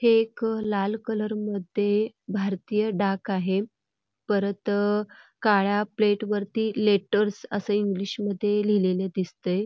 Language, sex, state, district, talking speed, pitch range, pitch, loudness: Marathi, female, Karnataka, Belgaum, 95 wpm, 200-215 Hz, 205 Hz, -26 LUFS